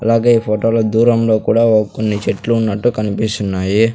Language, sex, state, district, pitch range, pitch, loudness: Telugu, male, Andhra Pradesh, Sri Satya Sai, 105-115 Hz, 110 Hz, -15 LUFS